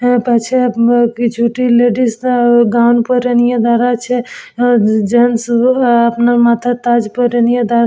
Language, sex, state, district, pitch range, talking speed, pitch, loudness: Bengali, female, West Bengal, Purulia, 235-245 Hz, 135 wpm, 240 Hz, -12 LUFS